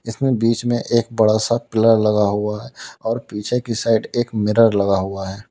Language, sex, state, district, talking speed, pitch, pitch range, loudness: Hindi, male, Uttar Pradesh, Lalitpur, 205 wpm, 115 Hz, 105-115 Hz, -18 LUFS